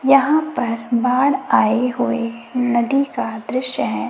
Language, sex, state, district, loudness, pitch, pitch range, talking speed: Hindi, female, Chhattisgarh, Raipur, -19 LUFS, 250 Hz, 235-270 Hz, 130 wpm